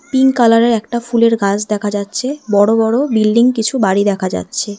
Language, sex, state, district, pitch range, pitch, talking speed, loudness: Bengali, female, West Bengal, Alipurduar, 205-240 Hz, 225 Hz, 175 wpm, -14 LUFS